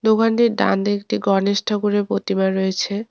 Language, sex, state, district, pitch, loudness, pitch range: Bengali, female, West Bengal, Cooch Behar, 205 Hz, -19 LUFS, 195-220 Hz